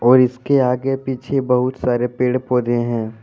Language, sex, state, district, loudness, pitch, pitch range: Hindi, male, Jharkhand, Deoghar, -18 LUFS, 125 Hz, 120-130 Hz